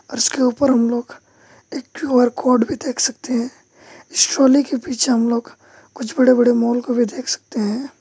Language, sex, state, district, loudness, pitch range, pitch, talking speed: Hindi, male, West Bengal, Alipurduar, -18 LUFS, 240-270 Hz, 250 Hz, 185 wpm